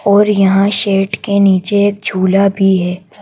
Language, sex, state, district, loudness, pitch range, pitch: Hindi, female, Madhya Pradesh, Bhopal, -12 LUFS, 195-205 Hz, 200 Hz